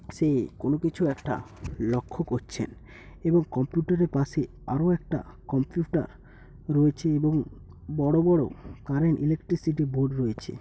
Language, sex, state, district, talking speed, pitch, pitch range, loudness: Bengali, male, West Bengal, Paschim Medinipur, 120 wpm, 145 Hz, 125-165 Hz, -27 LUFS